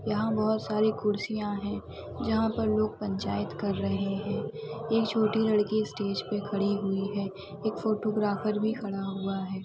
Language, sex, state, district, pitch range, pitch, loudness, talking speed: Hindi, female, Chhattisgarh, Sukma, 195-215 Hz, 210 Hz, -30 LUFS, 175 wpm